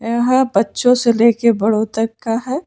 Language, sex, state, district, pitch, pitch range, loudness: Hindi, female, Karnataka, Bangalore, 230 Hz, 225-250 Hz, -15 LUFS